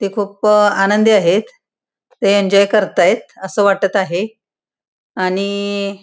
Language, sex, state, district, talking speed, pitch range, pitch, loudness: Marathi, female, Maharashtra, Pune, 120 wpm, 195-210 Hz, 200 Hz, -15 LUFS